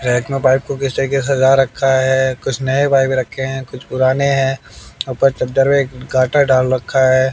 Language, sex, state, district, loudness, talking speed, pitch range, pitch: Hindi, male, Haryana, Jhajjar, -15 LUFS, 205 wpm, 130-135 Hz, 135 Hz